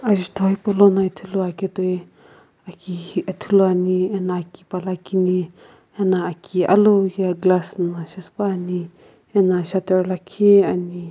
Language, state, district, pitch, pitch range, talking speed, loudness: Sumi, Nagaland, Kohima, 185 Hz, 180-195 Hz, 125 wpm, -19 LUFS